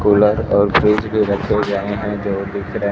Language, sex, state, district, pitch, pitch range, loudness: Hindi, male, Bihar, Kaimur, 100 Hz, 100-105 Hz, -17 LUFS